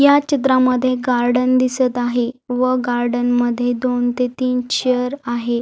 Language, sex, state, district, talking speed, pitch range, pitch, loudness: Marathi, female, Maharashtra, Aurangabad, 140 wpm, 245-255 Hz, 250 Hz, -18 LUFS